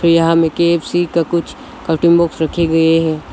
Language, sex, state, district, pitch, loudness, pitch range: Hindi, male, Arunachal Pradesh, Lower Dibang Valley, 170 Hz, -14 LUFS, 165-170 Hz